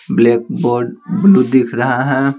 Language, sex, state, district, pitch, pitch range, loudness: Hindi, male, Bihar, Patna, 130 Hz, 120-140 Hz, -14 LUFS